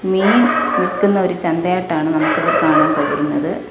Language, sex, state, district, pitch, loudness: Malayalam, female, Kerala, Kollam, 195 Hz, -16 LUFS